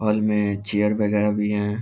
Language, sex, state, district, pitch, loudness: Hindi, male, Bihar, Lakhisarai, 105 Hz, -22 LUFS